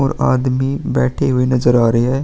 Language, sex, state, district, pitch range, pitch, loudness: Hindi, male, Uttar Pradesh, Jalaun, 120-135 Hz, 125 Hz, -15 LUFS